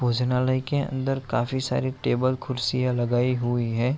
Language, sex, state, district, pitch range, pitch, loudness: Hindi, male, Bihar, Araria, 120-130 Hz, 125 Hz, -25 LUFS